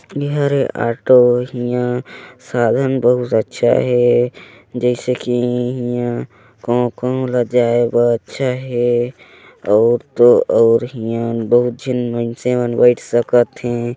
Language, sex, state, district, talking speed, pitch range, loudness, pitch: Hindi, male, Chhattisgarh, Sarguja, 115 wpm, 120-125 Hz, -16 LUFS, 120 Hz